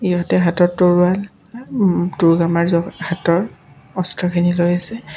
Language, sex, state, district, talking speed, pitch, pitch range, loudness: Assamese, male, Assam, Kamrup Metropolitan, 130 wpm, 175 Hz, 170-185 Hz, -17 LUFS